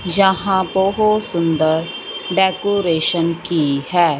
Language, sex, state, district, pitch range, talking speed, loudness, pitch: Hindi, female, Punjab, Fazilka, 165-195 Hz, 85 wpm, -17 LUFS, 180 Hz